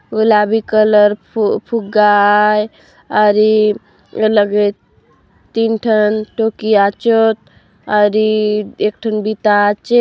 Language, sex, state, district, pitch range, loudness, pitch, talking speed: Halbi, female, Chhattisgarh, Bastar, 210-220 Hz, -13 LUFS, 215 Hz, 100 wpm